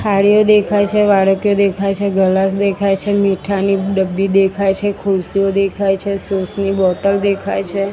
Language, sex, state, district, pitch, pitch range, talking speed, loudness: Gujarati, female, Gujarat, Gandhinagar, 195 Hz, 195-200 Hz, 160 wpm, -15 LUFS